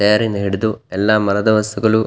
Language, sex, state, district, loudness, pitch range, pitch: Kannada, male, Karnataka, Dakshina Kannada, -17 LUFS, 100-110 Hz, 105 Hz